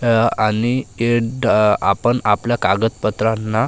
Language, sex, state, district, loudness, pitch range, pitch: Marathi, male, Maharashtra, Gondia, -17 LUFS, 105-120 Hz, 115 Hz